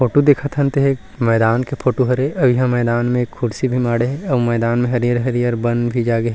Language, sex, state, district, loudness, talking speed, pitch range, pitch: Chhattisgarhi, male, Chhattisgarh, Rajnandgaon, -17 LUFS, 225 wpm, 120-130 Hz, 125 Hz